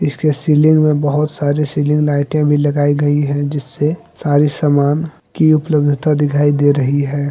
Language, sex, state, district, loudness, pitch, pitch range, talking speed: Hindi, male, Jharkhand, Deoghar, -14 LUFS, 145 Hz, 145-150 Hz, 165 wpm